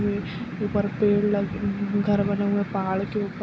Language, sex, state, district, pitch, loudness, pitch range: Kumaoni, male, Uttarakhand, Uttarkashi, 205 Hz, -25 LUFS, 200-205 Hz